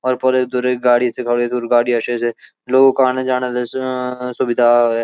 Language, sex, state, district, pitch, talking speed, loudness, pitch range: Garhwali, male, Uttarakhand, Uttarkashi, 125 Hz, 130 wpm, -17 LUFS, 120-130 Hz